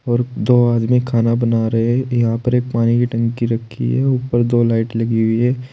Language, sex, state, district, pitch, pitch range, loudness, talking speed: Hindi, male, Uttar Pradesh, Saharanpur, 120 Hz, 115-125 Hz, -17 LUFS, 220 wpm